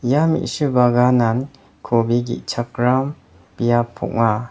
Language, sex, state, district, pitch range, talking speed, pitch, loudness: Garo, male, Meghalaya, West Garo Hills, 115-125 Hz, 95 wpm, 120 Hz, -19 LUFS